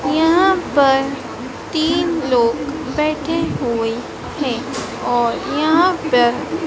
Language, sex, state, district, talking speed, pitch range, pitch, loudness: Hindi, female, Madhya Pradesh, Dhar, 90 wpm, 250-325 Hz, 295 Hz, -17 LUFS